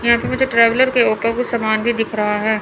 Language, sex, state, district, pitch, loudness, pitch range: Hindi, female, Chandigarh, Chandigarh, 230 Hz, -16 LUFS, 220-235 Hz